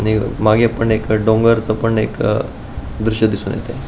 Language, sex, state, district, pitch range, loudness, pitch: Marathi, male, Goa, North and South Goa, 110-115 Hz, -16 LUFS, 110 Hz